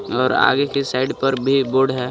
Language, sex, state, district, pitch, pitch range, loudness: Hindi, male, Jharkhand, Garhwa, 135 Hz, 130-135 Hz, -18 LUFS